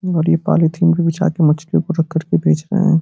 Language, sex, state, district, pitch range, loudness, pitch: Hindi, male, Uttar Pradesh, Gorakhpur, 160-175 Hz, -16 LUFS, 165 Hz